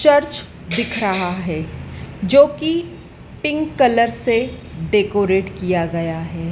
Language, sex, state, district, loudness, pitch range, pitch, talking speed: Hindi, female, Madhya Pradesh, Dhar, -18 LUFS, 170-285 Hz, 205 Hz, 120 wpm